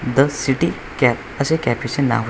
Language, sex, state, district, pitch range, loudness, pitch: Marathi, male, Maharashtra, Washim, 120-140 Hz, -19 LUFS, 130 Hz